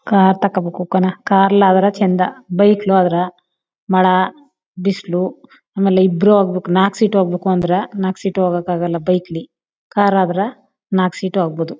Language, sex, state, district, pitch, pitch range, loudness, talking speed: Kannada, female, Karnataka, Chamarajanagar, 190 Hz, 180-195 Hz, -16 LUFS, 145 wpm